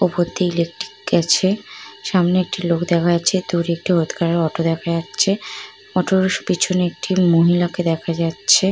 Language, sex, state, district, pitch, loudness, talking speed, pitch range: Bengali, female, West Bengal, Purulia, 175 Hz, -18 LUFS, 165 wpm, 170-185 Hz